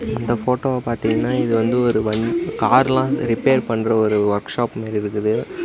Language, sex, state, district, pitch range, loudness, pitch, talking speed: Tamil, male, Tamil Nadu, Namakkal, 110-125 Hz, -19 LUFS, 115 Hz, 160 wpm